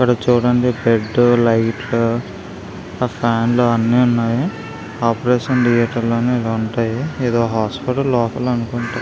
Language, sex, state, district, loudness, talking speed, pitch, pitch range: Telugu, male, Andhra Pradesh, Visakhapatnam, -17 LUFS, 135 wpm, 120 Hz, 115-125 Hz